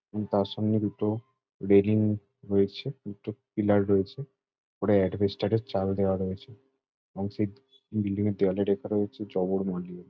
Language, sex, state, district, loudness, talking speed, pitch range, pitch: Bengali, male, West Bengal, Jalpaiguri, -28 LUFS, 145 wpm, 100-110 Hz, 105 Hz